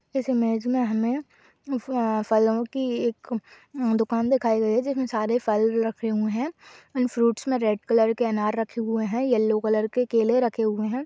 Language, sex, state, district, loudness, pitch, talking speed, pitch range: Hindi, female, Uttar Pradesh, Budaun, -24 LUFS, 230 Hz, 200 wpm, 220-250 Hz